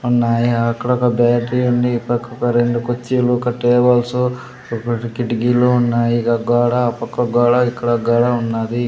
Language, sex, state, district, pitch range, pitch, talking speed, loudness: Telugu, male, Andhra Pradesh, Sri Satya Sai, 120-125 Hz, 120 Hz, 155 wpm, -16 LUFS